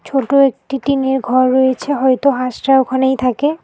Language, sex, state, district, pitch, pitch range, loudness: Bengali, female, West Bengal, Alipurduar, 265 Hz, 255-275 Hz, -14 LUFS